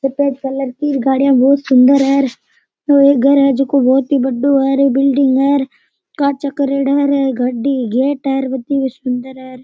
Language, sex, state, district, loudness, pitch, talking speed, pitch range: Rajasthani, male, Rajasthan, Churu, -14 LUFS, 275 Hz, 175 wpm, 265-280 Hz